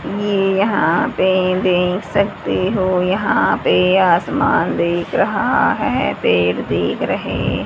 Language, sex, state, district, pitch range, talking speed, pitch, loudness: Hindi, female, Haryana, Rohtak, 180-195 Hz, 115 wpm, 185 Hz, -16 LUFS